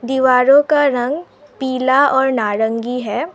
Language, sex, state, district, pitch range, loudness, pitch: Hindi, female, Assam, Sonitpur, 245-280 Hz, -15 LUFS, 260 Hz